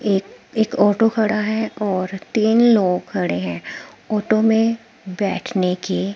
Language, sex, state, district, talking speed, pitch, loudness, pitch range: Hindi, female, Himachal Pradesh, Shimla, 135 wpm, 210 Hz, -19 LUFS, 185-220 Hz